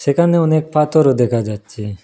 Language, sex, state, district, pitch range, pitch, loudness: Bengali, male, Assam, Hailakandi, 110-155 Hz, 140 Hz, -15 LUFS